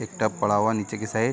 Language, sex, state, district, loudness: Hindi, male, Chhattisgarh, Bilaspur, -25 LUFS